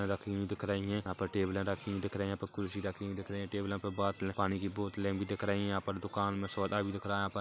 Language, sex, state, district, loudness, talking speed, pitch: Hindi, male, Chhattisgarh, Kabirdham, -37 LUFS, 340 wpm, 100 Hz